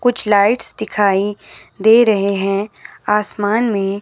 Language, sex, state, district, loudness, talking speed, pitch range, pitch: Hindi, female, Himachal Pradesh, Shimla, -16 LUFS, 120 wpm, 200-220 Hz, 210 Hz